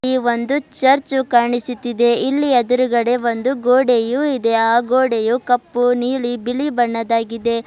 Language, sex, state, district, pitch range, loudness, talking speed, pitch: Kannada, female, Karnataka, Bidar, 235-260 Hz, -16 LUFS, 115 wpm, 245 Hz